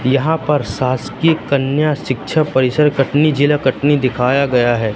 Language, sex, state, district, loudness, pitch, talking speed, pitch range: Hindi, male, Madhya Pradesh, Katni, -15 LUFS, 140 Hz, 145 wpm, 130-150 Hz